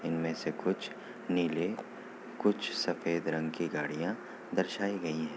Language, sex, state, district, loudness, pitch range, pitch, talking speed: Hindi, male, Bihar, Kishanganj, -34 LUFS, 80-95 Hz, 85 Hz, 135 wpm